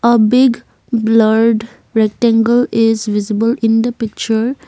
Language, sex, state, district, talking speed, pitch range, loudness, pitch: English, female, Assam, Kamrup Metropolitan, 115 wpm, 220-235 Hz, -14 LUFS, 225 Hz